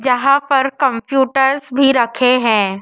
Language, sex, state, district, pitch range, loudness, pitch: Hindi, female, Madhya Pradesh, Dhar, 245-275 Hz, -14 LUFS, 265 Hz